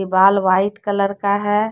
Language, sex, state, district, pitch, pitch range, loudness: Hindi, female, Jharkhand, Deoghar, 200 Hz, 195-205 Hz, -17 LUFS